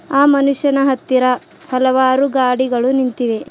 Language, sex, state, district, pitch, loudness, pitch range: Kannada, female, Karnataka, Bidar, 260 Hz, -15 LUFS, 255-275 Hz